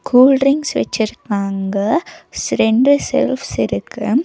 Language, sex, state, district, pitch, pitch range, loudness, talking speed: Tamil, female, Tamil Nadu, Nilgiris, 250 Hz, 210-275 Hz, -16 LUFS, 85 wpm